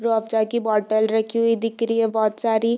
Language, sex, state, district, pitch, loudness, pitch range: Hindi, female, Bihar, Darbhanga, 225 Hz, -21 LUFS, 220-230 Hz